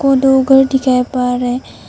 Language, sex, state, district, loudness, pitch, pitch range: Hindi, female, Arunachal Pradesh, Papum Pare, -13 LUFS, 265 Hz, 250-270 Hz